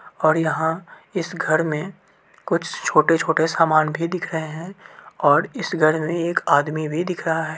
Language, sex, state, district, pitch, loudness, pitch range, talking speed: Hindi, male, Uttar Pradesh, Varanasi, 165 Hz, -21 LUFS, 155-175 Hz, 190 wpm